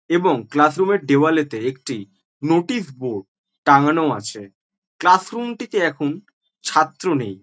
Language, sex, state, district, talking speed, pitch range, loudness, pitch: Bengali, male, West Bengal, Jhargram, 145 wpm, 135-190 Hz, -19 LUFS, 155 Hz